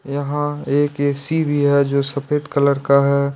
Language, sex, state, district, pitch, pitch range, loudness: Hindi, male, Jharkhand, Deoghar, 140 Hz, 140-145 Hz, -18 LUFS